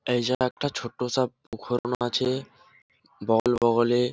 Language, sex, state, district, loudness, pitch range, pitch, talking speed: Bengali, male, West Bengal, Jhargram, -26 LUFS, 120-130 Hz, 125 Hz, 70 wpm